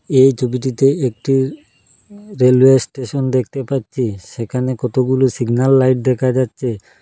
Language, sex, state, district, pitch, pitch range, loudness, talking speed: Bengali, male, Assam, Hailakandi, 130 Hz, 125-135 Hz, -16 LUFS, 120 wpm